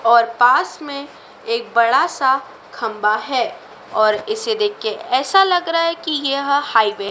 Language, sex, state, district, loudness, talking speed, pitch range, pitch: Hindi, female, Madhya Pradesh, Dhar, -17 LUFS, 170 wpm, 230-335 Hz, 275 Hz